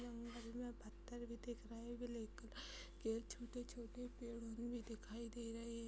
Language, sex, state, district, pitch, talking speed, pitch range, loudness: Hindi, female, Uttar Pradesh, Budaun, 235 Hz, 165 wpm, 230-240 Hz, -51 LUFS